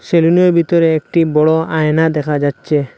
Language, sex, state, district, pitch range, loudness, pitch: Bengali, male, Assam, Hailakandi, 150-165 Hz, -13 LUFS, 160 Hz